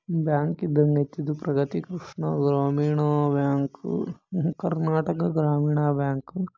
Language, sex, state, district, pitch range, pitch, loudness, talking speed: Kannada, male, Karnataka, Bellary, 145-165 Hz, 150 Hz, -25 LUFS, 110 wpm